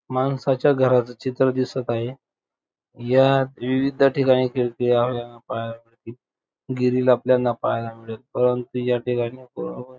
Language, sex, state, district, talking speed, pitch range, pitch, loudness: Marathi, male, Maharashtra, Dhule, 110 wpm, 120-130 Hz, 125 Hz, -22 LUFS